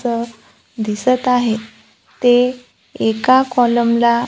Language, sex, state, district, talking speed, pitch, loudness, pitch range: Marathi, female, Maharashtra, Gondia, 100 wpm, 235 Hz, -16 LUFS, 230-250 Hz